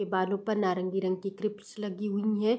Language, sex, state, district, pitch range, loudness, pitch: Hindi, female, Uttar Pradesh, Gorakhpur, 190-210 Hz, -31 LUFS, 200 Hz